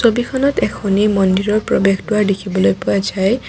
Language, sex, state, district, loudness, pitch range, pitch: Assamese, female, Assam, Kamrup Metropolitan, -16 LUFS, 195-220 Hz, 200 Hz